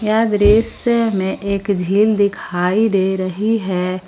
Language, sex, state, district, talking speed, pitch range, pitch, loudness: Hindi, female, Jharkhand, Palamu, 130 wpm, 190-220 Hz, 200 Hz, -17 LUFS